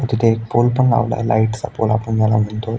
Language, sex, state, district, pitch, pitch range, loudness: Marathi, male, Maharashtra, Aurangabad, 115 Hz, 110-120 Hz, -17 LUFS